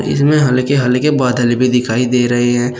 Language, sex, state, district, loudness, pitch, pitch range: Hindi, male, Uttar Pradesh, Shamli, -13 LUFS, 125 Hz, 120-130 Hz